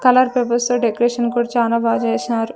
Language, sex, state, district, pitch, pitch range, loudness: Telugu, female, Andhra Pradesh, Sri Satya Sai, 240 Hz, 235-245 Hz, -17 LUFS